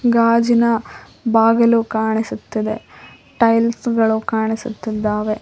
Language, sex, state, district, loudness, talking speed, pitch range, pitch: Kannada, female, Karnataka, Koppal, -17 LUFS, 65 wpm, 220-235 Hz, 225 Hz